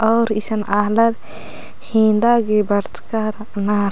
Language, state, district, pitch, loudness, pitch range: Kurukh, Chhattisgarh, Jashpur, 215 Hz, -18 LUFS, 210-225 Hz